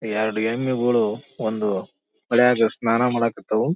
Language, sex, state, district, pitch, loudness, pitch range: Kannada, male, Karnataka, Bijapur, 115 Hz, -22 LUFS, 110-125 Hz